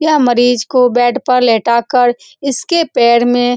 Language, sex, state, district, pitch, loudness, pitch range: Hindi, female, Bihar, Saran, 245 Hz, -12 LUFS, 240-265 Hz